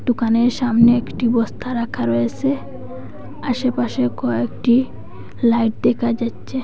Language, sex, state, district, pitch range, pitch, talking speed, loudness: Bengali, female, Assam, Hailakandi, 220-245 Hz, 235 Hz, 100 wpm, -19 LUFS